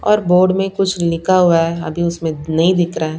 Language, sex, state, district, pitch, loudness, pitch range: Hindi, female, Punjab, Pathankot, 170 Hz, -15 LUFS, 165-185 Hz